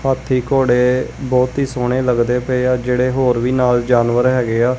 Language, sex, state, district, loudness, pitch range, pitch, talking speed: Punjabi, male, Punjab, Kapurthala, -16 LUFS, 125-130 Hz, 125 Hz, 190 wpm